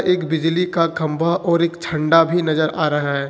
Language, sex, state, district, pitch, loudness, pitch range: Hindi, male, Jharkhand, Ranchi, 165 Hz, -18 LUFS, 155-170 Hz